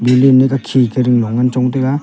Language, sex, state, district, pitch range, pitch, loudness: Wancho, male, Arunachal Pradesh, Longding, 125-130 Hz, 125 Hz, -13 LUFS